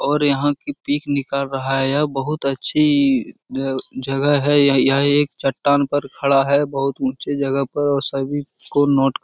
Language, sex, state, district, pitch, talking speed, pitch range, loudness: Hindi, male, Uttar Pradesh, Muzaffarnagar, 140 Hz, 190 wpm, 135-145 Hz, -18 LUFS